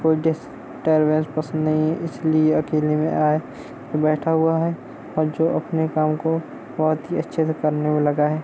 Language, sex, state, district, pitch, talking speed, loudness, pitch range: Hindi, male, Uttar Pradesh, Hamirpur, 155 Hz, 190 wpm, -21 LUFS, 155-160 Hz